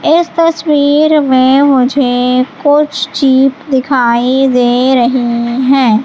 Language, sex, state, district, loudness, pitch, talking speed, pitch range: Hindi, female, Madhya Pradesh, Katni, -10 LUFS, 265 Hz, 100 wpm, 250-290 Hz